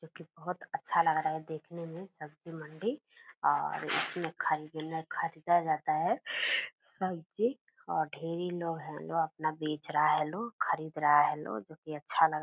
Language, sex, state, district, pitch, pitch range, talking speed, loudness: Hindi, female, Bihar, Purnia, 160 Hz, 155-175 Hz, 175 wpm, -33 LUFS